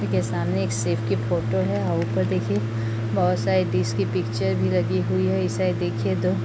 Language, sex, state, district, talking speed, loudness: Hindi, female, Bihar, Bhagalpur, 225 wpm, -23 LUFS